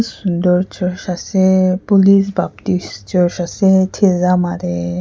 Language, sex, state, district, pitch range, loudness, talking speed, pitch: Nagamese, female, Nagaland, Kohima, 175-190 Hz, -15 LUFS, 110 wpm, 180 Hz